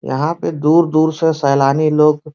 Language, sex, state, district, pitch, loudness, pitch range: Bhojpuri, male, Uttar Pradesh, Varanasi, 155 Hz, -14 LUFS, 150-160 Hz